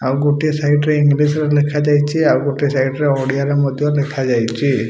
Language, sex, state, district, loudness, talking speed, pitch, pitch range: Odia, male, Odisha, Malkangiri, -16 LUFS, 185 wpm, 145 Hz, 135-150 Hz